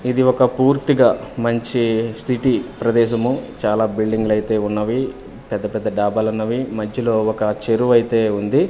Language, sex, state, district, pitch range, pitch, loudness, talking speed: Telugu, male, Andhra Pradesh, Manyam, 110-125 Hz, 115 Hz, -18 LUFS, 115 wpm